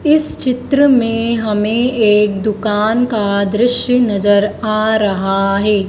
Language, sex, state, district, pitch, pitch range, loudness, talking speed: Hindi, female, Madhya Pradesh, Dhar, 215 Hz, 205-245 Hz, -14 LUFS, 120 wpm